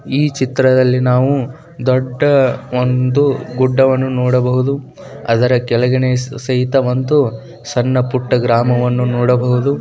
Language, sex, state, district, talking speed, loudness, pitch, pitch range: Kannada, male, Karnataka, Bijapur, 90 wpm, -15 LUFS, 130 Hz, 125-135 Hz